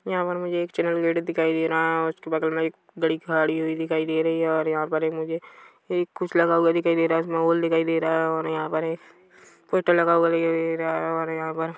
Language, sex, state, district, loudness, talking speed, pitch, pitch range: Hindi, male, Chhattisgarh, Rajnandgaon, -24 LUFS, 275 wpm, 165 Hz, 160-170 Hz